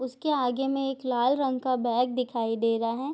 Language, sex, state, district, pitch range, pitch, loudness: Hindi, female, Bihar, Darbhanga, 240-270 Hz, 255 Hz, -27 LUFS